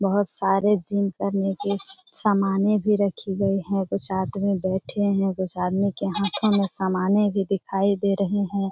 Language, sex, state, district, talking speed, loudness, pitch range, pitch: Hindi, female, Jharkhand, Jamtara, 165 wpm, -23 LUFS, 195-200 Hz, 195 Hz